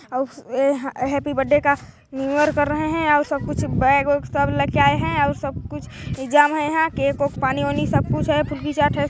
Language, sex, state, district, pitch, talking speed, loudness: Hindi, female, Chhattisgarh, Balrampur, 275 Hz, 250 wpm, -20 LUFS